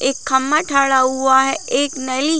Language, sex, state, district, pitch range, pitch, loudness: Hindi, female, Jharkhand, Sahebganj, 265-280 Hz, 265 Hz, -16 LUFS